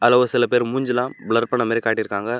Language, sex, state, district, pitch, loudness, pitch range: Tamil, male, Tamil Nadu, Namakkal, 120 Hz, -20 LUFS, 115-125 Hz